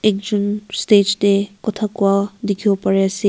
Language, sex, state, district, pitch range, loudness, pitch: Nagamese, female, Nagaland, Kohima, 200-210 Hz, -18 LUFS, 200 Hz